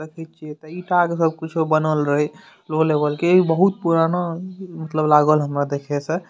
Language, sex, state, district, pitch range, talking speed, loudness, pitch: Maithili, male, Bihar, Madhepura, 150-170 Hz, 155 wpm, -19 LUFS, 160 Hz